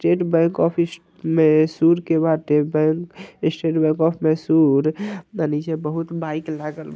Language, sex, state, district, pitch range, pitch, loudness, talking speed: Hindi, male, Bihar, Vaishali, 155-170 Hz, 160 Hz, -20 LUFS, 140 wpm